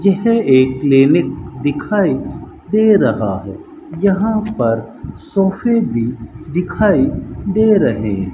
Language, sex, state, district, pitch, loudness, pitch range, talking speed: Hindi, male, Rajasthan, Bikaner, 190 Hz, -15 LUFS, 130-215 Hz, 100 wpm